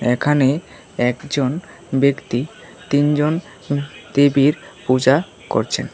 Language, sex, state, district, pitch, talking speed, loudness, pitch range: Bengali, male, Tripura, West Tripura, 145 Hz, 70 wpm, -19 LUFS, 135-160 Hz